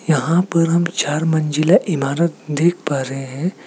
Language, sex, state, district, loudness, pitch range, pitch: Hindi, male, Meghalaya, West Garo Hills, -18 LUFS, 150-170 Hz, 160 Hz